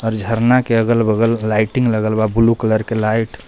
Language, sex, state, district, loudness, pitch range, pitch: Bhojpuri, male, Jharkhand, Palamu, -16 LUFS, 110-115 Hz, 115 Hz